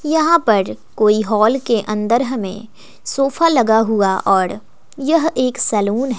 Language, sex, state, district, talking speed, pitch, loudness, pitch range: Hindi, female, Bihar, West Champaran, 145 wpm, 225 Hz, -16 LUFS, 210-270 Hz